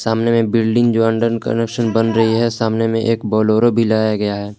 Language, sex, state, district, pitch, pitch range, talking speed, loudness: Hindi, male, Jharkhand, Palamu, 115 Hz, 110-115 Hz, 210 wpm, -16 LUFS